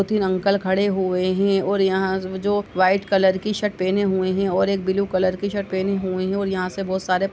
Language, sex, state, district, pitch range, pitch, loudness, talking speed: Hindi, female, Uttar Pradesh, Budaun, 185-200 Hz, 190 Hz, -21 LUFS, 245 wpm